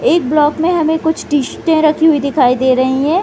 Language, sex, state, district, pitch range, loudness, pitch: Hindi, female, Bihar, Gopalganj, 275-320 Hz, -13 LUFS, 310 Hz